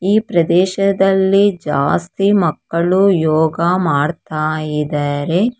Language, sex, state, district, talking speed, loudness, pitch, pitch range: Kannada, female, Karnataka, Bangalore, 75 wpm, -15 LUFS, 175 Hz, 155-195 Hz